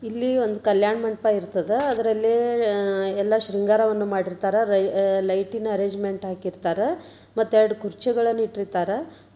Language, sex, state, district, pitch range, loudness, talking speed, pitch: Kannada, female, Karnataka, Dharwad, 195-225 Hz, -23 LUFS, 120 wpm, 210 Hz